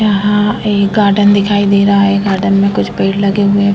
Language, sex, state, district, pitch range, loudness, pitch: Hindi, female, Uttar Pradesh, Etah, 200-205 Hz, -11 LUFS, 200 Hz